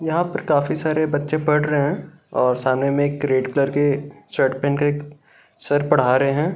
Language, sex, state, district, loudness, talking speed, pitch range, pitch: Hindi, male, Bihar, Gaya, -20 LUFS, 185 wpm, 140-150 Hz, 145 Hz